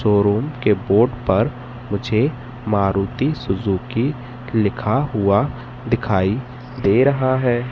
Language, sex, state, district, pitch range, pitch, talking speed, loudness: Hindi, male, Madhya Pradesh, Katni, 100-125 Hz, 120 Hz, 100 wpm, -19 LUFS